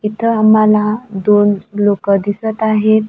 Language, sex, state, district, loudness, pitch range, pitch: Marathi, female, Maharashtra, Gondia, -13 LUFS, 205-220 Hz, 210 Hz